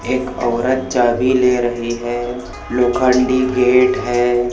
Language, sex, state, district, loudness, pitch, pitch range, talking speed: Hindi, male, Maharashtra, Chandrapur, -16 LUFS, 125 Hz, 120-125 Hz, 120 wpm